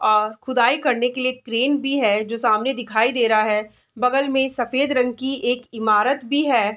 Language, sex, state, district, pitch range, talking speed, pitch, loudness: Hindi, female, Bihar, Vaishali, 220-265 Hz, 205 wpm, 245 Hz, -20 LUFS